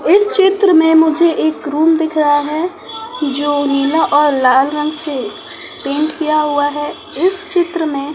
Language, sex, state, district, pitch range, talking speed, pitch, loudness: Hindi, female, Bihar, West Champaran, 290-345 Hz, 160 wpm, 310 Hz, -14 LUFS